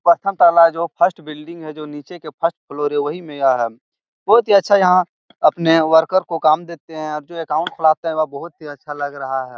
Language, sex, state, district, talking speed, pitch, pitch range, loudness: Hindi, male, Bihar, Jahanabad, 245 wpm, 160 Hz, 150-170 Hz, -17 LUFS